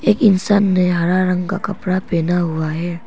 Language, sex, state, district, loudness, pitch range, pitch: Hindi, female, Arunachal Pradesh, Papum Pare, -17 LUFS, 175-195 Hz, 185 Hz